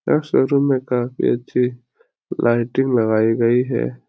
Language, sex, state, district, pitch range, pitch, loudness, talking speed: Hindi, male, Bihar, Supaul, 115-130 Hz, 120 Hz, -19 LUFS, 130 wpm